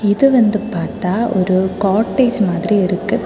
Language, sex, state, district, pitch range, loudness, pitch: Tamil, female, Tamil Nadu, Kanyakumari, 190-225 Hz, -15 LUFS, 205 Hz